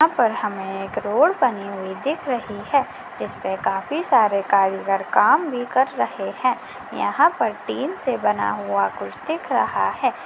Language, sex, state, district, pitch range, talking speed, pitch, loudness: Hindi, female, Bihar, Madhepura, 195-260 Hz, 170 wpm, 200 Hz, -21 LUFS